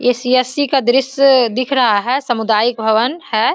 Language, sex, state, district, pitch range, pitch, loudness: Hindi, female, Bihar, Samastipur, 230-270 Hz, 250 Hz, -14 LUFS